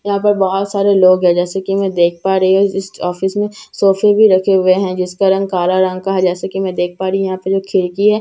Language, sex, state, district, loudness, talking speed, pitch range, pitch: Hindi, female, Bihar, Katihar, -14 LUFS, 285 wpm, 185-195 Hz, 190 Hz